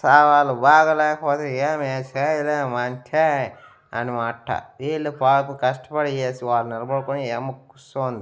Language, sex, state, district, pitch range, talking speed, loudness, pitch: Telugu, male, Andhra Pradesh, Annamaya, 125-150 Hz, 100 wpm, -21 LUFS, 135 Hz